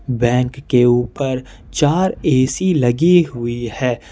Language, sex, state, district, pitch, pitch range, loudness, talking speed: Hindi, male, Jharkhand, Ranchi, 125 Hz, 120-145 Hz, -16 LUFS, 115 wpm